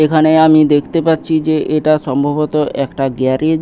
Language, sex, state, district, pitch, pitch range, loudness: Bengali, male, West Bengal, Paschim Medinipur, 155 Hz, 145-155 Hz, -13 LUFS